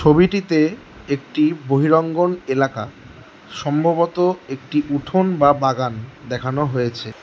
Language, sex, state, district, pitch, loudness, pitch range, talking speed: Bengali, male, West Bengal, Alipurduar, 145 Hz, -19 LUFS, 135-165 Hz, 90 wpm